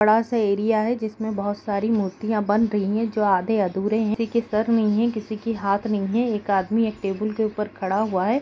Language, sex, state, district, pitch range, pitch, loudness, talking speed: Hindi, female, Bihar, East Champaran, 205-225 Hz, 215 Hz, -23 LUFS, 230 wpm